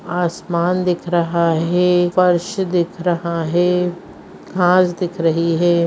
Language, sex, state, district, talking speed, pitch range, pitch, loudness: Hindi, male, Bihar, Muzaffarpur, 120 wpm, 170-180 Hz, 175 Hz, -17 LUFS